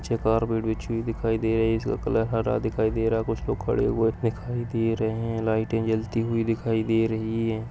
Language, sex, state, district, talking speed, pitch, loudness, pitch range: Hindi, male, Chhattisgarh, Rajnandgaon, 235 wpm, 115 Hz, -26 LUFS, 110-115 Hz